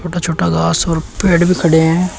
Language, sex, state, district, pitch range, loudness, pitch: Hindi, male, Uttar Pradesh, Shamli, 160-175 Hz, -14 LUFS, 165 Hz